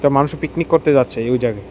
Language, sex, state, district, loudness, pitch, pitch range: Bengali, male, Tripura, West Tripura, -17 LUFS, 140 Hz, 120-155 Hz